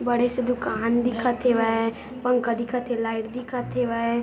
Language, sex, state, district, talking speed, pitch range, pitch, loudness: Chhattisgarhi, female, Chhattisgarh, Bilaspur, 155 wpm, 230-250 Hz, 240 Hz, -25 LUFS